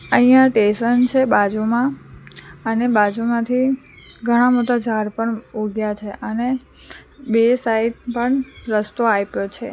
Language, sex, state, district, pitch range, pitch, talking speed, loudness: Gujarati, female, Gujarat, Valsad, 215-245 Hz, 235 Hz, 115 wpm, -18 LUFS